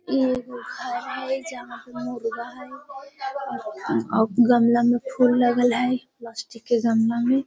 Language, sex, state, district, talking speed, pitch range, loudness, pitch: Magahi, female, Bihar, Gaya, 145 wpm, 235-260 Hz, -23 LUFS, 245 Hz